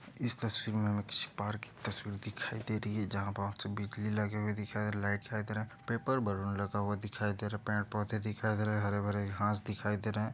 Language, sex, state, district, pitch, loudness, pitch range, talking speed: Hindi, male, Bihar, Jahanabad, 105 Hz, -36 LUFS, 105-110 Hz, 250 wpm